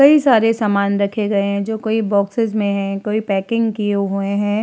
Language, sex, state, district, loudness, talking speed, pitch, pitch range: Hindi, female, Uttar Pradesh, Hamirpur, -17 LUFS, 195 wpm, 210 Hz, 200-220 Hz